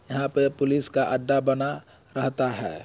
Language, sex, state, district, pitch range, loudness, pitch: Hindi, male, Bihar, Muzaffarpur, 130-140 Hz, -25 LUFS, 135 Hz